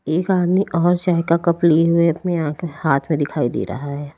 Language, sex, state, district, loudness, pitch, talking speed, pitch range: Hindi, female, Uttar Pradesh, Lalitpur, -18 LUFS, 165 Hz, 215 wpm, 145-175 Hz